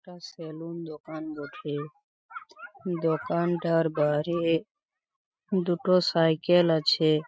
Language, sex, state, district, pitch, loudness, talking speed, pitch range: Bengali, male, West Bengal, Paschim Medinipur, 170 Hz, -26 LUFS, 80 wpm, 155-185 Hz